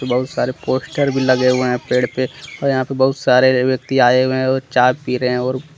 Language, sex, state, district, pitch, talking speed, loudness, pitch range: Hindi, male, Jharkhand, Deoghar, 130 Hz, 250 wpm, -17 LUFS, 125-130 Hz